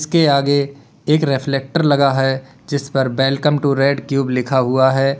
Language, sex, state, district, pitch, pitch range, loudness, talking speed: Hindi, male, Uttar Pradesh, Lalitpur, 140 Hz, 135-140 Hz, -17 LUFS, 175 wpm